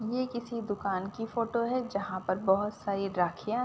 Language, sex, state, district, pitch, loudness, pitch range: Hindi, female, Uttar Pradesh, Ghazipur, 210 Hz, -32 LUFS, 195-235 Hz